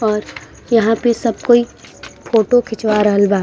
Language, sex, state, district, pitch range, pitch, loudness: Bhojpuri, female, Bihar, East Champaran, 210-235 Hz, 225 Hz, -15 LUFS